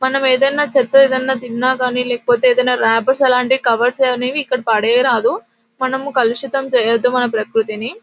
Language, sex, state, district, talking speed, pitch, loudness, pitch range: Telugu, female, Telangana, Nalgonda, 155 wpm, 250 Hz, -15 LUFS, 240-265 Hz